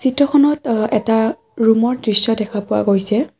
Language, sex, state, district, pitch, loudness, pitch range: Assamese, female, Assam, Kamrup Metropolitan, 225 Hz, -16 LUFS, 215-260 Hz